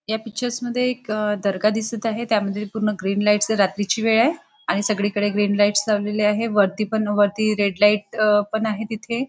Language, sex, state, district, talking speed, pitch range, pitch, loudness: Marathi, female, Maharashtra, Nagpur, 185 wpm, 205-220 Hz, 215 Hz, -21 LUFS